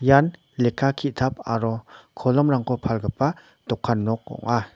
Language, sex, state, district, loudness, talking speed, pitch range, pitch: Garo, male, Meghalaya, North Garo Hills, -24 LUFS, 100 wpm, 115-140 Hz, 130 Hz